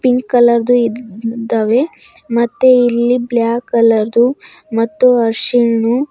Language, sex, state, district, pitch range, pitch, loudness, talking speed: Kannada, female, Karnataka, Bidar, 230-245 Hz, 235 Hz, -13 LUFS, 90 wpm